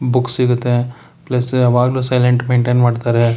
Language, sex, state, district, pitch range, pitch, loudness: Kannada, male, Karnataka, Bangalore, 120-125 Hz, 125 Hz, -15 LUFS